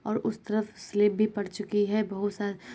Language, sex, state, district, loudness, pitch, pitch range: Hindi, female, Uttar Pradesh, Jyotiba Phule Nagar, -29 LUFS, 205 Hz, 205-215 Hz